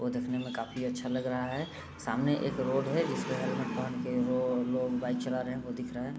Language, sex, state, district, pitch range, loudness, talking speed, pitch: Hindi, male, Bihar, East Champaran, 125-130 Hz, -33 LUFS, 250 wpm, 125 Hz